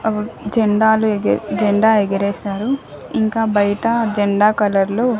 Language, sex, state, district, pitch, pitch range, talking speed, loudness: Telugu, female, Andhra Pradesh, Annamaya, 210 Hz, 205-220 Hz, 115 wpm, -17 LUFS